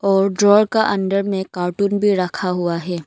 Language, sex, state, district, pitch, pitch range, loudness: Hindi, female, Arunachal Pradesh, Longding, 195 Hz, 180-205 Hz, -18 LUFS